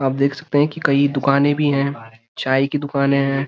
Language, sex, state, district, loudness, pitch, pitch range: Hindi, male, Uttarakhand, Uttarkashi, -18 LUFS, 140 Hz, 135-145 Hz